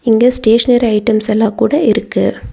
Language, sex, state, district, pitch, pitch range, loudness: Tamil, female, Tamil Nadu, Nilgiris, 225 Hz, 220-240 Hz, -12 LUFS